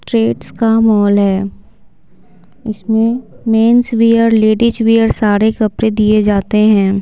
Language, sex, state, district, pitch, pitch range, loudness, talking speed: Hindi, female, Bihar, Patna, 215 Hz, 205-225 Hz, -12 LUFS, 120 wpm